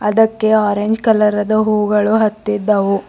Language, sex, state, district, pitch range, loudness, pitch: Kannada, female, Karnataka, Bidar, 205-220 Hz, -15 LUFS, 210 Hz